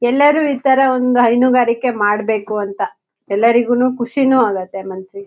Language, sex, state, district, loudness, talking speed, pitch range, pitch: Kannada, female, Karnataka, Shimoga, -15 LUFS, 115 wpm, 205-255 Hz, 240 Hz